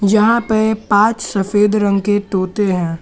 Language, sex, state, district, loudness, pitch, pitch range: Hindi, male, Jharkhand, Garhwa, -15 LUFS, 205 Hz, 195-220 Hz